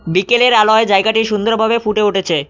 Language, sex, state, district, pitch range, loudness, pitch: Bengali, male, West Bengal, Cooch Behar, 195-225 Hz, -13 LUFS, 215 Hz